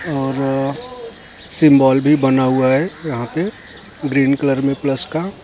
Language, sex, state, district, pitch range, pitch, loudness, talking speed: Hindi, male, Maharashtra, Mumbai Suburban, 135-155 Hz, 140 Hz, -16 LUFS, 155 wpm